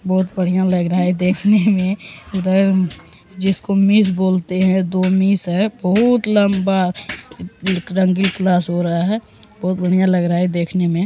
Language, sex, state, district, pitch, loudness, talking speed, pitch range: Hindi, female, Bihar, Supaul, 185 Hz, -17 LUFS, 150 wpm, 180-195 Hz